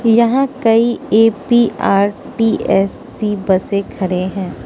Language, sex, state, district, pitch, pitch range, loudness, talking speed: Hindi, female, Mizoram, Aizawl, 220 Hz, 195-235 Hz, -15 LUFS, 75 wpm